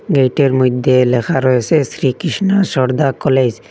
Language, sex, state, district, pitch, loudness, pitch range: Bengali, male, Assam, Hailakandi, 130 Hz, -14 LUFS, 130-150 Hz